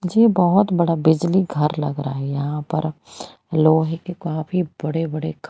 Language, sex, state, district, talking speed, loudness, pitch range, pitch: Hindi, female, Haryana, Rohtak, 165 wpm, -20 LUFS, 150-180 Hz, 160 Hz